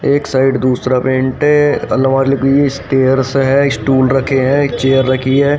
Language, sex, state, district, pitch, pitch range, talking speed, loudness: Hindi, male, Haryana, Rohtak, 135 Hz, 130-140 Hz, 170 wpm, -13 LUFS